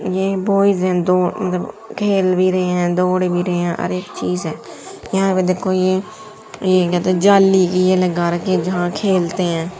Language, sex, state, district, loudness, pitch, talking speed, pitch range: Hindi, female, Haryana, Charkhi Dadri, -17 LUFS, 185 Hz, 200 wpm, 180-190 Hz